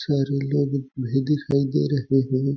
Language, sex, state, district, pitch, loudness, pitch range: Hindi, male, Chhattisgarh, Balrampur, 140 Hz, -23 LUFS, 135-140 Hz